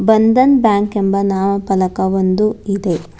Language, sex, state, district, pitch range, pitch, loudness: Kannada, female, Karnataka, Bangalore, 190-215 Hz, 200 Hz, -15 LUFS